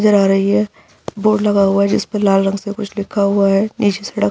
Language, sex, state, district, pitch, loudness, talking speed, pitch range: Hindi, female, Bihar, Araria, 200 Hz, -16 LUFS, 265 wpm, 195-210 Hz